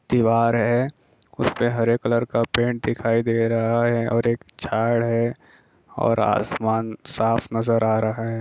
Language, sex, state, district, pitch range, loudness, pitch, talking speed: Hindi, male, Bihar, Jahanabad, 115-120 Hz, -22 LUFS, 115 Hz, 150 wpm